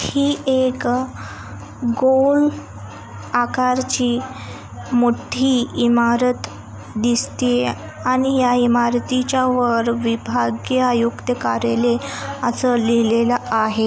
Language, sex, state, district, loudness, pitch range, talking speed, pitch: Marathi, female, Maharashtra, Aurangabad, -18 LUFS, 220-255 Hz, 80 wpm, 240 Hz